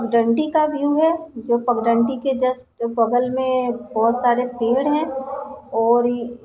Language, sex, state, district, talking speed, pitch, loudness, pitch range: Hindi, female, Bihar, Sitamarhi, 160 wpm, 250 Hz, -20 LUFS, 235-275 Hz